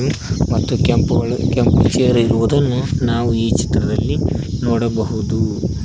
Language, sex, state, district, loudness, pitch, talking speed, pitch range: Kannada, male, Karnataka, Koppal, -17 LUFS, 115 Hz, 90 wpm, 105-120 Hz